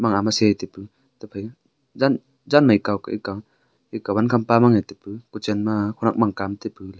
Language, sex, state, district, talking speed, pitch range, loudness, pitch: Wancho, male, Arunachal Pradesh, Longding, 155 wpm, 100-115 Hz, -21 LUFS, 105 Hz